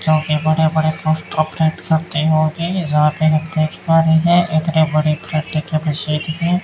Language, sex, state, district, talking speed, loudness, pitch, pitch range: Hindi, male, Rajasthan, Bikaner, 190 wpm, -17 LUFS, 155 Hz, 155-160 Hz